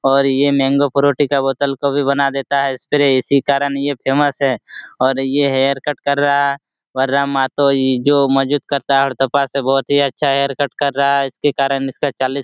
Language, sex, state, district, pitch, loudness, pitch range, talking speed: Hindi, male, Jharkhand, Jamtara, 140 Hz, -16 LUFS, 135-140 Hz, 215 wpm